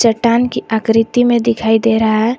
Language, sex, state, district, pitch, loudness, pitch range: Hindi, female, Jharkhand, Garhwa, 230 Hz, -13 LUFS, 225-235 Hz